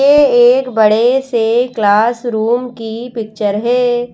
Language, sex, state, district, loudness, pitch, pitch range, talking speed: Hindi, female, Madhya Pradesh, Bhopal, -13 LUFS, 240 Hz, 225-245 Hz, 115 wpm